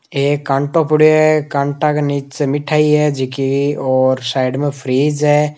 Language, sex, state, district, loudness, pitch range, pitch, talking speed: Hindi, male, Rajasthan, Nagaur, -15 LUFS, 135-150 Hz, 145 Hz, 160 wpm